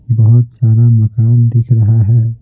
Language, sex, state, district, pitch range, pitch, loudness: Hindi, male, Bihar, Patna, 110-120 Hz, 115 Hz, -10 LUFS